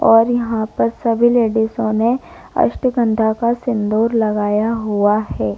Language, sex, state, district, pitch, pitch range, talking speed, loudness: Hindi, female, Chhattisgarh, Korba, 225 Hz, 215-235 Hz, 130 wpm, -17 LUFS